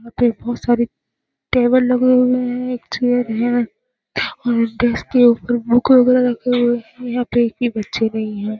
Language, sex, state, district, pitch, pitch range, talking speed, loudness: Hindi, female, Bihar, Jamui, 240 Hz, 235-250 Hz, 200 wpm, -17 LUFS